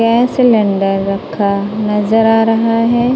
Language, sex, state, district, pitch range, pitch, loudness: Hindi, female, Punjab, Kapurthala, 200-230 Hz, 225 Hz, -13 LUFS